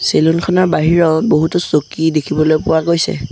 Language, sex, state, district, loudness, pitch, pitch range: Assamese, male, Assam, Sonitpur, -14 LUFS, 160 Hz, 155-170 Hz